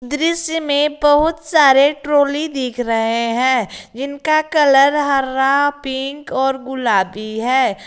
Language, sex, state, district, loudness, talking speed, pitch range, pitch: Hindi, female, Jharkhand, Garhwa, -16 LUFS, 115 wpm, 260-295 Hz, 275 Hz